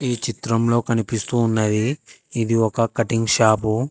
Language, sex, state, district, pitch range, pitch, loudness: Telugu, male, Telangana, Hyderabad, 110-120 Hz, 115 Hz, -20 LUFS